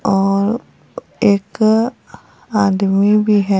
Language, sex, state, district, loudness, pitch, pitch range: Hindi, female, Bihar, Katihar, -15 LUFS, 205 Hz, 195-215 Hz